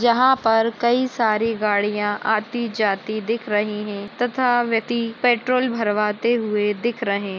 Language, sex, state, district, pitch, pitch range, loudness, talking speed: Hindi, female, Maharashtra, Nagpur, 225 Hz, 210-240 Hz, -21 LUFS, 140 wpm